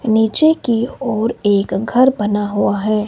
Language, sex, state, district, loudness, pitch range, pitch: Hindi, male, Himachal Pradesh, Shimla, -16 LUFS, 205-245 Hz, 220 Hz